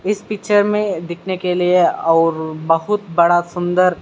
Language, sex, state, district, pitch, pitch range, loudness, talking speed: Hindi, male, Maharashtra, Sindhudurg, 180 Hz, 170-200 Hz, -17 LUFS, 150 wpm